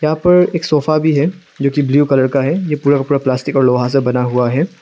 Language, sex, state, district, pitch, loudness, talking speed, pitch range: Hindi, male, Arunachal Pradesh, Lower Dibang Valley, 145 Hz, -14 LUFS, 275 wpm, 135-155 Hz